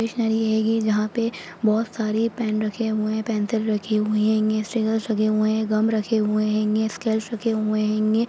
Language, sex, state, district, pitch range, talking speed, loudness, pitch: Hindi, female, Bihar, Sitamarhi, 215-225 Hz, 195 wpm, -22 LUFS, 220 Hz